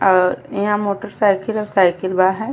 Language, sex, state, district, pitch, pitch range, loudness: Bhojpuri, female, Uttar Pradesh, Deoria, 200 Hz, 185-210 Hz, -18 LUFS